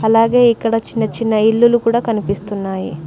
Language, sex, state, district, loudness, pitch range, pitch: Telugu, female, Telangana, Mahabubabad, -15 LUFS, 210-230 Hz, 225 Hz